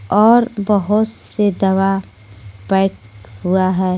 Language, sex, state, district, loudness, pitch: Hindi, female, Jharkhand, Garhwa, -16 LUFS, 190 Hz